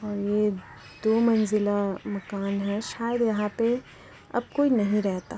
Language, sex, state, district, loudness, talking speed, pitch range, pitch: Hindi, female, Bihar, Lakhisarai, -26 LUFS, 145 wpm, 200-230 Hz, 210 Hz